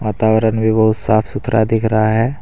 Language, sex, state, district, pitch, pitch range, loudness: Hindi, male, Jharkhand, Deoghar, 110 Hz, 110-115 Hz, -15 LUFS